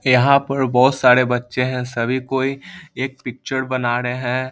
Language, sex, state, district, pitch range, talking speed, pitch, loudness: Hindi, male, Bihar, Lakhisarai, 125-135 Hz, 170 wpm, 130 Hz, -18 LUFS